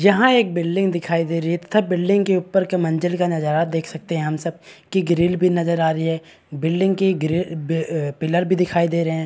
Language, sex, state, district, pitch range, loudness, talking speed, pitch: Hindi, male, Bihar, Kishanganj, 165-185 Hz, -20 LUFS, 235 wpm, 170 Hz